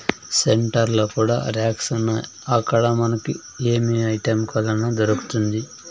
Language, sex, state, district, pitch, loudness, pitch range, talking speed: Telugu, male, Andhra Pradesh, Sri Satya Sai, 115 Hz, -21 LUFS, 110-120 Hz, 110 wpm